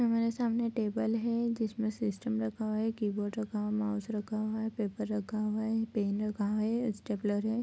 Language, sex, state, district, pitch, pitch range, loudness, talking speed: Hindi, female, Bihar, Bhagalpur, 215 Hz, 210-225 Hz, -33 LUFS, 230 wpm